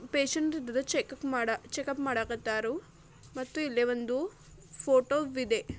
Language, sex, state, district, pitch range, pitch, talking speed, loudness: Kannada, female, Karnataka, Belgaum, 240-280 Hz, 260 Hz, 105 wpm, -31 LUFS